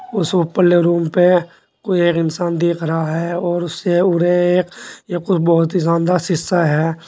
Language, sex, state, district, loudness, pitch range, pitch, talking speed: Hindi, male, Uttar Pradesh, Saharanpur, -16 LUFS, 165-180 Hz, 175 Hz, 195 wpm